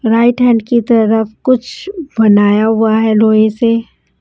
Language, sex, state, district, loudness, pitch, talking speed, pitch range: Hindi, female, Punjab, Kapurthala, -11 LUFS, 225 Hz, 145 wpm, 220-240 Hz